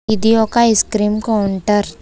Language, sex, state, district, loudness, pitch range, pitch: Telugu, female, Telangana, Hyderabad, -15 LUFS, 210-225 Hz, 215 Hz